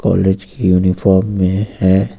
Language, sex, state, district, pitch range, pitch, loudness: Hindi, male, Uttar Pradesh, Lucknow, 95-100 Hz, 95 Hz, -14 LUFS